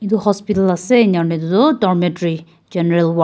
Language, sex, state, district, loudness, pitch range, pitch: Nagamese, female, Nagaland, Kohima, -16 LUFS, 170-205 Hz, 180 Hz